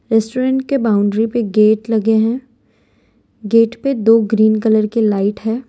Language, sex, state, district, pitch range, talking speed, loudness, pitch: Hindi, female, Gujarat, Valsad, 215-235 Hz, 160 wpm, -15 LUFS, 225 Hz